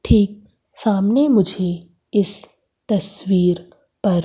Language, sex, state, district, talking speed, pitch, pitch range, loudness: Hindi, female, Madhya Pradesh, Umaria, 85 wpm, 200 Hz, 180-210 Hz, -19 LUFS